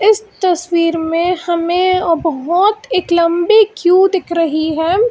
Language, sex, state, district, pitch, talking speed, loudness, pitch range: Hindi, female, Karnataka, Bangalore, 350 Hz, 130 wpm, -14 LUFS, 335-380 Hz